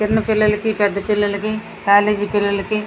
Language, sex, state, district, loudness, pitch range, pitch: Telugu, female, Andhra Pradesh, Srikakulam, -18 LUFS, 205-215 Hz, 210 Hz